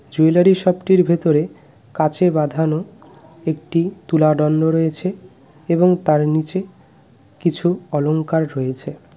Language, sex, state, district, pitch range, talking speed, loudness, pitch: Bengali, male, West Bengal, Cooch Behar, 155-175 Hz, 105 wpm, -18 LUFS, 160 Hz